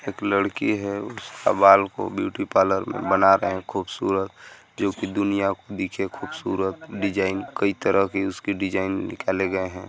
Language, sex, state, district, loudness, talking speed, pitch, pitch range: Hindi, male, Chhattisgarh, Sarguja, -23 LUFS, 165 wpm, 95 Hz, 95-100 Hz